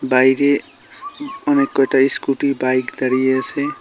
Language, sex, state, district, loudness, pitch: Bengali, male, West Bengal, Cooch Behar, -17 LUFS, 135 Hz